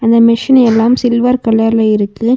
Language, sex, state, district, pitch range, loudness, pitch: Tamil, female, Tamil Nadu, Nilgiris, 225-245 Hz, -10 LUFS, 230 Hz